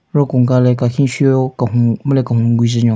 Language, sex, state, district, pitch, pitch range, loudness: Rengma, male, Nagaland, Kohima, 125 Hz, 120-135 Hz, -14 LUFS